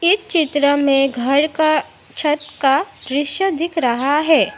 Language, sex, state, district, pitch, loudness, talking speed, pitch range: Hindi, female, Assam, Sonitpur, 295 Hz, -17 LUFS, 145 wpm, 280-320 Hz